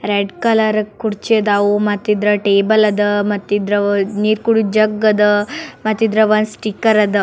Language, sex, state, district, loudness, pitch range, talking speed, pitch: Kannada, male, Karnataka, Bijapur, -15 LUFS, 205-215 Hz, 160 wpm, 210 Hz